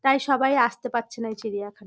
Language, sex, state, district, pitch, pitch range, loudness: Bengali, female, West Bengal, North 24 Parganas, 235 Hz, 220-270 Hz, -24 LUFS